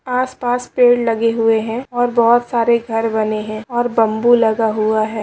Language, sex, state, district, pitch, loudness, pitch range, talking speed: Hindi, female, Bihar, Saharsa, 230 Hz, -16 LUFS, 220-245 Hz, 185 wpm